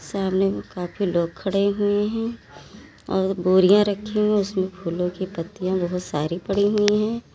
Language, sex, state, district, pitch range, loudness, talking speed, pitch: Hindi, female, Uttar Pradesh, Lalitpur, 180-205 Hz, -22 LUFS, 165 wpm, 195 Hz